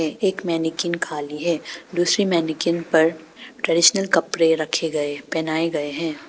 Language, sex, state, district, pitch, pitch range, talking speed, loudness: Hindi, female, Arunachal Pradesh, Papum Pare, 165 Hz, 160-175 Hz, 135 wpm, -21 LUFS